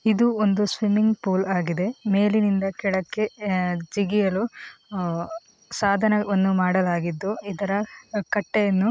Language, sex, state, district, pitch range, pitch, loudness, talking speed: Kannada, female, Karnataka, Mysore, 190-210 Hz, 200 Hz, -23 LUFS, 80 wpm